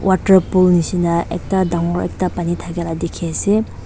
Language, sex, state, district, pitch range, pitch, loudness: Nagamese, female, Nagaland, Dimapur, 170-190 Hz, 175 Hz, -17 LUFS